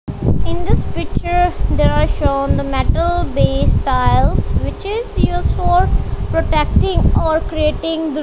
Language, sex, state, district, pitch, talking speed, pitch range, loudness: English, female, Punjab, Kapurthala, 325 Hz, 125 wpm, 315-355 Hz, -17 LUFS